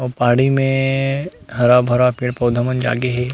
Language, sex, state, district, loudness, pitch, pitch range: Chhattisgarhi, male, Chhattisgarh, Rajnandgaon, -17 LUFS, 125 Hz, 125-135 Hz